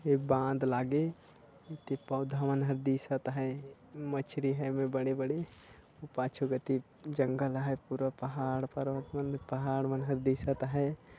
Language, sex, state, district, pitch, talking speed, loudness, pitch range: Chhattisgarhi, male, Chhattisgarh, Sarguja, 135 Hz, 140 wpm, -34 LUFS, 130-140 Hz